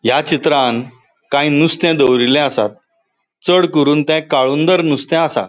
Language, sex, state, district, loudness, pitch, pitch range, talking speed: Konkani, male, Goa, North and South Goa, -14 LUFS, 150 Hz, 135-165 Hz, 130 wpm